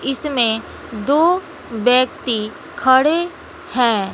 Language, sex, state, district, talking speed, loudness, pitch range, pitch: Hindi, female, Bihar, West Champaran, 70 wpm, -17 LUFS, 230-345 Hz, 260 Hz